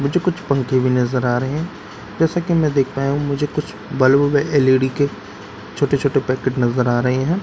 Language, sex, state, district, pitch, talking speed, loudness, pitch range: Hindi, male, Bihar, Katihar, 140 Hz, 210 wpm, -18 LUFS, 130-145 Hz